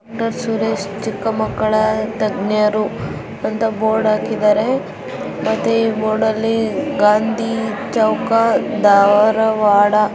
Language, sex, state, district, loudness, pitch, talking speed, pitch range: Kannada, female, Karnataka, Dharwad, -16 LUFS, 220 Hz, 90 wpm, 210-225 Hz